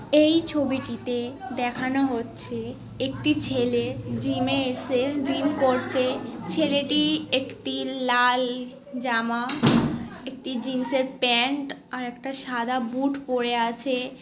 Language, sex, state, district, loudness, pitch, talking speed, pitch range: Bengali, female, West Bengal, Kolkata, -25 LUFS, 255 Hz, 105 wpm, 245-275 Hz